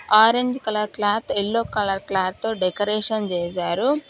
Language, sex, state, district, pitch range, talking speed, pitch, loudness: Telugu, female, Telangana, Hyderabad, 195-225 Hz, 130 wpm, 210 Hz, -21 LUFS